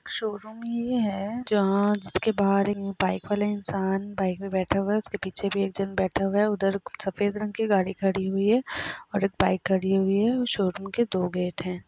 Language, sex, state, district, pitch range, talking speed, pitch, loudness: Hindi, female, Chhattisgarh, Raigarh, 190-210 Hz, 210 wpm, 195 Hz, -26 LUFS